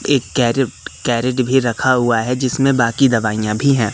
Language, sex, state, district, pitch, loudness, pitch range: Hindi, male, Madhya Pradesh, Katni, 125 Hz, -16 LUFS, 115-135 Hz